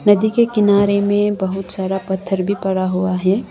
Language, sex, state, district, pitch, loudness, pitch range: Hindi, female, Sikkim, Gangtok, 195 Hz, -17 LUFS, 190-205 Hz